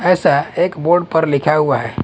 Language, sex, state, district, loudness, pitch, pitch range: Hindi, male, Punjab, Kapurthala, -15 LUFS, 155 Hz, 140-175 Hz